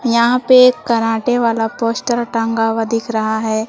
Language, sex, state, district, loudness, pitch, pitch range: Hindi, female, Jharkhand, Palamu, -15 LUFS, 230 Hz, 225-240 Hz